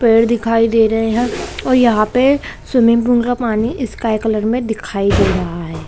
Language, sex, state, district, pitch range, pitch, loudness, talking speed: Hindi, female, Chhattisgarh, Korba, 220-245 Hz, 230 Hz, -15 LUFS, 195 wpm